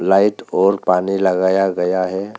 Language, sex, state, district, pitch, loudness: Hindi, male, Arunachal Pradesh, Papum Pare, 95 Hz, -16 LUFS